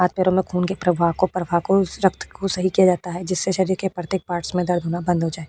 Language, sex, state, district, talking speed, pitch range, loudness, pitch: Hindi, female, Uttar Pradesh, Budaun, 285 wpm, 175-190 Hz, -21 LUFS, 180 Hz